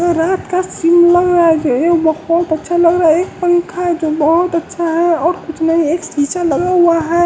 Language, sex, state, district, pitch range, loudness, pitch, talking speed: Hindi, male, Bihar, West Champaran, 325-345 Hz, -13 LUFS, 335 Hz, 225 wpm